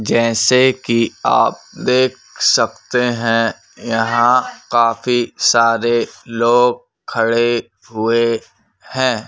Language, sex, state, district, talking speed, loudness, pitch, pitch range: Hindi, male, Madhya Pradesh, Bhopal, 85 wpm, -16 LUFS, 120 Hz, 115-125 Hz